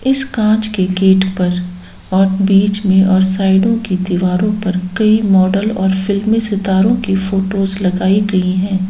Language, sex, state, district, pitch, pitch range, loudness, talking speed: Hindi, female, Bihar, Saran, 195 Hz, 190-205 Hz, -14 LUFS, 155 wpm